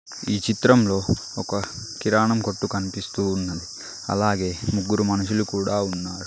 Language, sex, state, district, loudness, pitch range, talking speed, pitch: Telugu, male, Telangana, Mahabubabad, -23 LUFS, 95-105 Hz, 115 wpm, 100 Hz